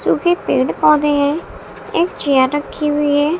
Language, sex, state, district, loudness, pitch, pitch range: Hindi, female, Bihar, West Champaran, -16 LUFS, 295 Hz, 290-335 Hz